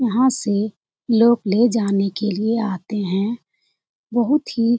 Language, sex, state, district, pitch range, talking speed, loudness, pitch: Hindi, female, Bihar, Jamui, 205-240 Hz, 150 wpm, -20 LUFS, 225 Hz